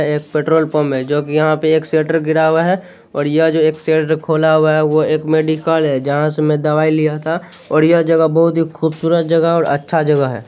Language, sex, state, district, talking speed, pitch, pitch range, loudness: Hindi, male, Bihar, Saharsa, 245 wpm, 155 Hz, 150-160 Hz, -15 LUFS